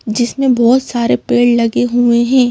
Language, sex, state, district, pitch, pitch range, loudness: Hindi, female, Madhya Pradesh, Bhopal, 240 Hz, 235-245 Hz, -12 LUFS